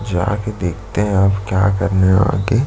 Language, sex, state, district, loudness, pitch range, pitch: Hindi, male, Chhattisgarh, Jashpur, -17 LUFS, 95-105 Hz, 100 Hz